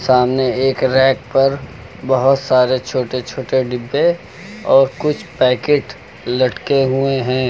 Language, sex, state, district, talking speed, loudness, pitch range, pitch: Hindi, male, Uttar Pradesh, Lucknow, 120 wpm, -16 LUFS, 125-135 Hz, 130 Hz